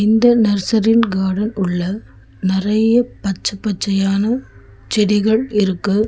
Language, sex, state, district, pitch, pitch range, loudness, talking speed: Tamil, female, Tamil Nadu, Chennai, 205 Hz, 190-220 Hz, -17 LUFS, 90 wpm